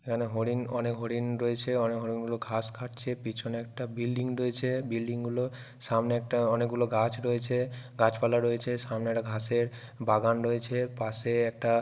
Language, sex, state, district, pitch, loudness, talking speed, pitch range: Bengali, male, West Bengal, Purulia, 120 Hz, -30 LUFS, 165 wpm, 115-125 Hz